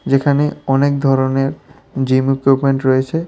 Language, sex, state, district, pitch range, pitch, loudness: Bengali, male, Tripura, West Tripura, 135-140 Hz, 135 Hz, -15 LUFS